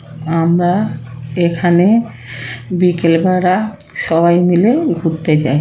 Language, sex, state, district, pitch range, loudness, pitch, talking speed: Bengali, female, West Bengal, Kolkata, 150-180 Hz, -14 LUFS, 170 Hz, 75 wpm